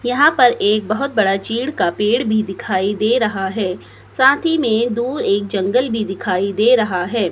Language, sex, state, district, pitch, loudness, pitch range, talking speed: Hindi, female, Himachal Pradesh, Shimla, 215 Hz, -17 LUFS, 200-245 Hz, 195 wpm